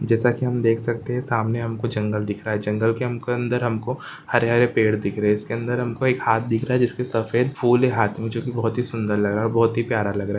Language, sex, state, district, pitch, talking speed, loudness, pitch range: Hindi, male, Maharashtra, Solapur, 115 Hz, 265 wpm, -22 LUFS, 110-120 Hz